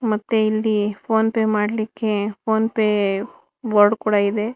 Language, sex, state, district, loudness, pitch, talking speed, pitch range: Kannada, female, Karnataka, Bangalore, -20 LUFS, 215 Hz, 130 wpm, 210-220 Hz